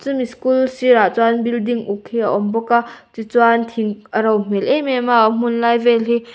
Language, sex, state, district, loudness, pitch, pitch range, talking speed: Mizo, female, Mizoram, Aizawl, -16 LUFS, 235 Hz, 225-240 Hz, 225 wpm